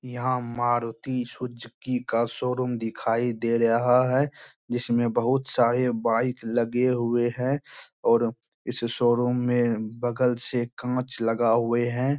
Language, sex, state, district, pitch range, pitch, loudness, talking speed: Hindi, male, Bihar, Bhagalpur, 115-125 Hz, 120 Hz, -25 LUFS, 130 wpm